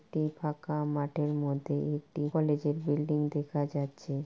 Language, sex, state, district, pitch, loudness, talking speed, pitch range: Bengali, female, West Bengal, Purulia, 150 Hz, -32 LUFS, 140 wpm, 145-150 Hz